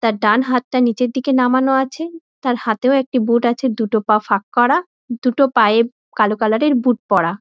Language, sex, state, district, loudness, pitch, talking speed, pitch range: Bengali, female, West Bengal, Dakshin Dinajpur, -17 LUFS, 245 Hz, 180 wpm, 225-265 Hz